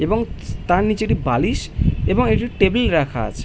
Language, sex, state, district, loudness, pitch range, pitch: Bengali, male, West Bengal, Malda, -19 LUFS, 125-215 Hz, 170 Hz